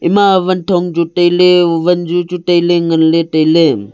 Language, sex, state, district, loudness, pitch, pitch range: Wancho, male, Arunachal Pradesh, Longding, -11 LUFS, 175 Hz, 165-180 Hz